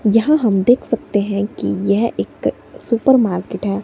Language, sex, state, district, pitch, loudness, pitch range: Hindi, female, Himachal Pradesh, Shimla, 210 Hz, -17 LUFS, 200-235 Hz